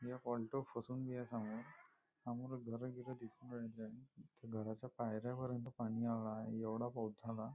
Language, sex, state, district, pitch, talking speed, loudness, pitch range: Marathi, male, Maharashtra, Nagpur, 120 Hz, 160 wpm, -46 LUFS, 115-125 Hz